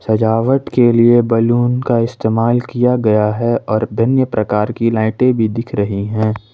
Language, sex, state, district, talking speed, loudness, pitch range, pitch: Hindi, male, Jharkhand, Ranchi, 165 wpm, -15 LUFS, 110-120 Hz, 115 Hz